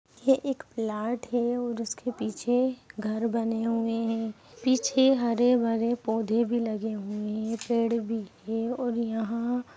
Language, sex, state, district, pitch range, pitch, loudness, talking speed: Hindi, female, Bihar, Sitamarhi, 225-245 Hz, 230 Hz, -28 LUFS, 155 wpm